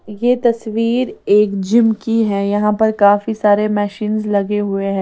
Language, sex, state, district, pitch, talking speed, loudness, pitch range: Hindi, female, Bihar, West Champaran, 210 Hz, 165 wpm, -16 LUFS, 205-225 Hz